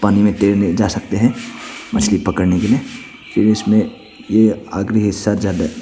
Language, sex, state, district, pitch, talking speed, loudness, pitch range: Hindi, male, Arunachal Pradesh, Papum Pare, 105 Hz, 145 wpm, -16 LUFS, 100-110 Hz